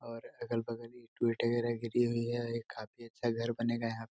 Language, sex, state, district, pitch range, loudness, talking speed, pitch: Hindi, male, Chhattisgarh, Korba, 115-120 Hz, -35 LUFS, 205 wpm, 115 Hz